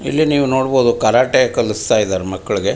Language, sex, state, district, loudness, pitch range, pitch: Kannada, male, Karnataka, Mysore, -15 LUFS, 105-135 Hz, 125 Hz